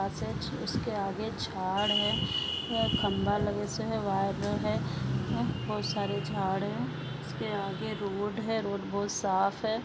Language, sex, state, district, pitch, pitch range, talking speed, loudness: Hindi, female, Maharashtra, Nagpur, 200 Hz, 190-210 Hz, 120 wpm, -31 LUFS